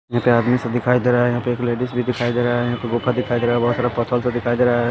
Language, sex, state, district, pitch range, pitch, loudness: Hindi, male, Delhi, New Delhi, 120-125 Hz, 120 Hz, -19 LUFS